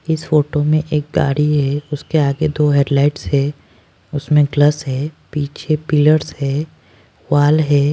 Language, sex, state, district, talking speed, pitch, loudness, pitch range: Hindi, female, Maharashtra, Washim, 145 wpm, 145 Hz, -16 LUFS, 140-150 Hz